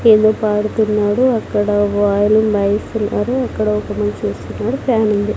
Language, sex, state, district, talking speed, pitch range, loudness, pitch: Telugu, female, Andhra Pradesh, Sri Satya Sai, 110 wpm, 205-220 Hz, -16 LUFS, 210 Hz